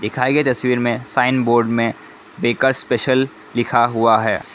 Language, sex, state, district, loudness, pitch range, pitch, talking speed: Hindi, male, Assam, Kamrup Metropolitan, -17 LUFS, 115-130 Hz, 120 Hz, 160 wpm